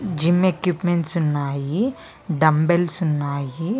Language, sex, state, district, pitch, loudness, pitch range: Telugu, female, Andhra Pradesh, Visakhapatnam, 165 Hz, -21 LUFS, 150-180 Hz